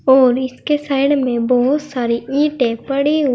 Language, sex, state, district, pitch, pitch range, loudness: Hindi, female, Uttar Pradesh, Saharanpur, 265 Hz, 250-290 Hz, -16 LUFS